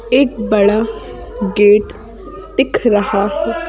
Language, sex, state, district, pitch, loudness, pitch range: Hindi, female, Madhya Pradesh, Bhopal, 215 Hz, -14 LUFS, 205-240 Hz